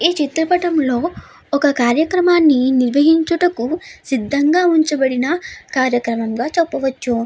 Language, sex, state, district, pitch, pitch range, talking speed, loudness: Telugu, female, Andhra Pradesh, Chittoor, 295 Hz, 260-340 Hz, 100 wpm, -16 LUFS